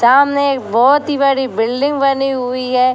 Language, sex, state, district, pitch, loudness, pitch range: Hindi, female, Bihar, Sitamarhi, 265 Hz, -14 LUFS, 250-275 Hz